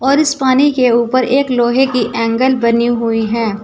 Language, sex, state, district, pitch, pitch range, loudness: Hindi, female, Uttar Pradesh, Saharanpur, 245 Hz, 230-265 Hz, -13 LUFS